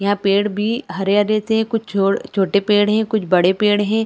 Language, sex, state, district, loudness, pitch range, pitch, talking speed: Hindi, female, Chhattisgarh, Bilaspur, -17 LUFS, 200-215 Hz, 205 Hz, 205 wpm